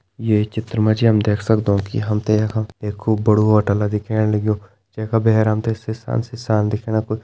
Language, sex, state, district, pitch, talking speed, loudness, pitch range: Hindi, male, Uttarakhand, Tehri Garhwal, 110 Hz, 225 wpm, -19 LUFS, 105-110 Hz